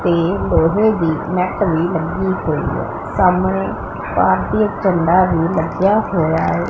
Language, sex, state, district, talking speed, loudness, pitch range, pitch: Punjabi, female, Punjab, Pathankot, 125 wpm, -17 LUFS, 165-195 Hz, 180 Hz